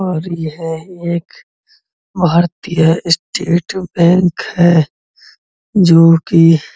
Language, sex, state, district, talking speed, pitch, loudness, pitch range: Hindi, male, Uttar Pradesh, Muzaffarnagar, 80 wpm, 170 Hz, -13 LUFS, 165-180 Hz